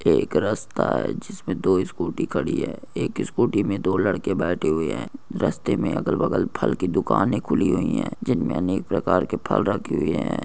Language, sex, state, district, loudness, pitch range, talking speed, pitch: Hindi, male, Andhra Pradesh, Krishna, -23 LUFS, 90-100 Hz, 195 wpm, 95 Hz